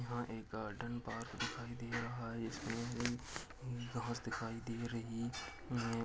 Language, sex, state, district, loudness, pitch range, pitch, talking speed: Hindi, male, Chhattisgarh, Sukma, -43 LUFS, 115-120 Hz, 120 Hz, 140 wpm